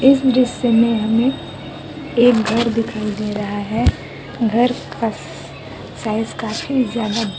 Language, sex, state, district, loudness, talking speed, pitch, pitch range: Hindi, female, Chhattisgarh, Kabirdham, -18 LUFS, 120 wpm, 230 Hz, 215-245 Hz